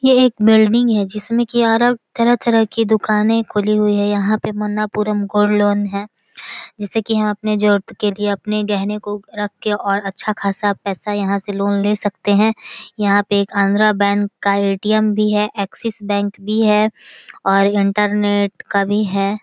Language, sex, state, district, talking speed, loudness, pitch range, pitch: Maithili, female, Bihar, Samastipur, 200 wpm, -17 LUFS, 200-215 Hz, 210 Hz